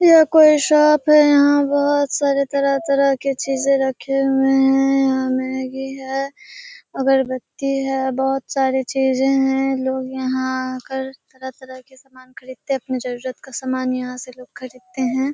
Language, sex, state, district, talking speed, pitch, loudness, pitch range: Hindi, female, Bihar, Kishanganj, 160 wpm, 270 Hz, -18 LUFS, 260-275 Hz